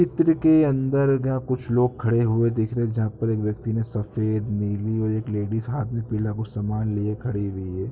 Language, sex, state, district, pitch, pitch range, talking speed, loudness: Hindi, male, Uttar Pradesh, Ghazipur, 110 Hz, 105-125 Hz, 220 wpm, -24 LUFS